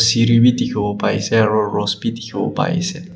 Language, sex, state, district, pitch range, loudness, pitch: Nagamese, male, Nagaland, Kohima, 105-120 Hz, -17 LUFS, 115 Hz